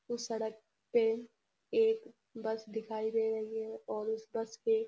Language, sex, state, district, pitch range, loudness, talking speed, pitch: Hindi, female, Uttarakhand, Uttarkashi, 220-225 Hz, -36 LUFS, 170 wpm, 225 Hz